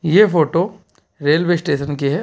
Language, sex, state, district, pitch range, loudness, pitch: Hindi, male, Delhi, New Delhi, 145-175 Hz, -17 LUFS, 165 Hz